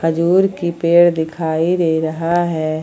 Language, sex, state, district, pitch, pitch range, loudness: Hindi, female, Jharkhand, Ranchi, 165 Hz, 160-175 Hz, -16 LUFS